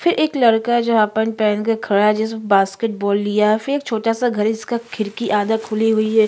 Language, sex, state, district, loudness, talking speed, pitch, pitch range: Hindi, female, Chhattisgarh, Korba, -18 LUFS, 230 wpm, 220 Hz, 210-230 Hz